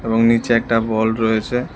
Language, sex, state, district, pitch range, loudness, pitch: Bengali, male, Tripura, West Tripura, 110-115 Hz, -17 LUFS, 115 Hz